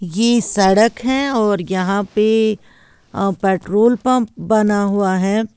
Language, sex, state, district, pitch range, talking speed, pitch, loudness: Hindi, female, Uttar Pradesh, Lalitpur, 195-225 Hz, 120 wpm, 210 Hz, -16 LUFS